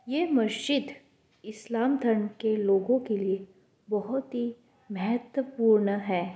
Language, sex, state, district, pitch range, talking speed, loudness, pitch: Hindi, female, Bihar, Kishanganj, 205-255 Hz, 115 wpm, -28 LUFS, 225 Hz